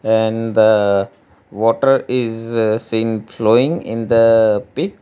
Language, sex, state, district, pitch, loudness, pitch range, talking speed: English, male, Gujarat, Valsad, 115 Hz, -16 LUFS, 110-115 Hz, 120 wpm